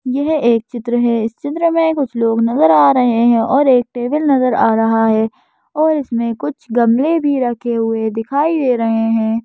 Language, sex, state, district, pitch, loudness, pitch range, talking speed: Hindi, female, Madhya Pradesh, Bhopal, 240 Hz, -15 LUFS, 225-280 Hz, 195 wpm